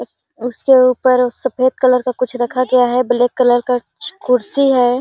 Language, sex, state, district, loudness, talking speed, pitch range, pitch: Hindi, female, Chhattisgarh, Sarguja, -14 LUFS, 215 wpm, 245-255 Hz, 250 Hz